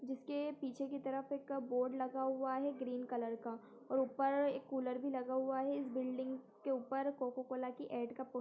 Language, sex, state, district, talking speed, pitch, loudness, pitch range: Hindi, female, Chhattisgarh, Kabirdham, 215 wpm, 265 Hz, -41 LUFS, 255-275 Hz